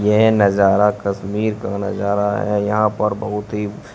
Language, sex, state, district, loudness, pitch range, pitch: Hindi, male, Uttar Pradesh, Shamli, -18 LUFS, 100-105 Hz, 105 Hz